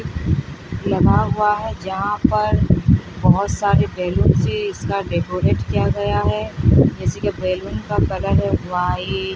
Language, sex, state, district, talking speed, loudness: Hindi, female, Odisha, Sambalpur, 130 wpm, -19 LUFS